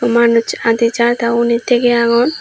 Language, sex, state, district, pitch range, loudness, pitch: Chakma, female, Tripura, Dhalai, 235-240 Hz, -13 LUFS, 235 Hz